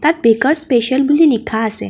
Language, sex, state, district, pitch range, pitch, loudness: Assamese, female, Assam, Kamrup Metropolitan, 230-305 Hz, 265 Hz, -14 LUFS